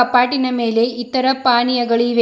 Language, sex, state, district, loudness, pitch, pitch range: Kannada, female, Karnataka, Bidar, -16 LUFS, 245 Hz, 235-255 Hz